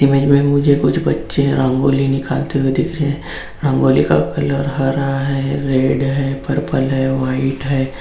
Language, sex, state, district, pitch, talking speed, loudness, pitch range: Hindi, male, Bihar, Gaya, 135 Hz, 165 wpm, -16 LUFS, 135-140 Hz